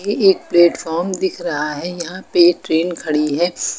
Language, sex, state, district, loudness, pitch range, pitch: Hindi, female, Uttar Pradesh, Lucknow, -17 LUFS, 165-190 Hz, 175 Hz